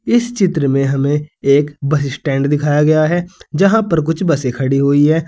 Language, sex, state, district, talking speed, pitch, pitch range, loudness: Hindi, male, Uttar Pradesh, Saharanpur, 195 wpm, 150 Hz, 140-165 Hz, -15 LUFS